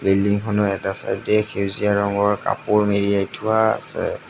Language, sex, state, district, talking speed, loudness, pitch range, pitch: Assamese, male, Assam, Sonitpur, 125 wpm, -19 LUFS, 100-105 Hz, 100 Hz